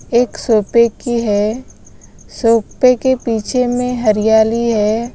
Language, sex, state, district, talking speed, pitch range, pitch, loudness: Hindi, female, Bihar, West Champaran, 115 wpm, 220-245 Hz, 235 Hz, -14 LUFS